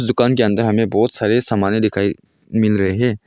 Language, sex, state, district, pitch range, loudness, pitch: Hindi, male, Arunachal Pradesh, Longding, 100-120 Hz, -17 LUFS, 110 Hz